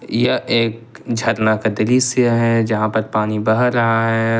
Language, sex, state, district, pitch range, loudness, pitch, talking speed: Hindi, male, Jharkhand, Ranchi, 110-115 Hz, -17 LUFS, 115 Hz, 165 wpm